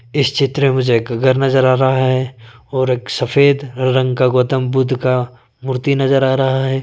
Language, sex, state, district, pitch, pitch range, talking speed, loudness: Hindi, male, Arunachal Pradesh, Lower Dibang Valley, 130 Hz, 125-135 Hz, 195 wpm, -15 LUFS